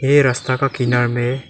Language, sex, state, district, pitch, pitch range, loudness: Hindi, male, Arunachal Pradesh, Lower Dibang Valley, 130 Hz, 125-135 Hz, -17 LUFS